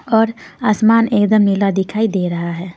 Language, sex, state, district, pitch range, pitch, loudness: Hindi, female, Punjab, Pathankot, 190-225 Hz, 210 Hz, -15 LUFS